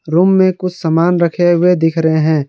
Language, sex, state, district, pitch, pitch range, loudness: Hindi, male, Jharkhand, Garhwa, 170 Hz, 160-180 Hz, -13 LUFS